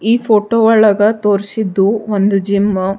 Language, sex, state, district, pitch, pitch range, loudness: Kannada, female, Karnataka, Bijapur, 205 Hz, 200-220 Hz, -13 LUFS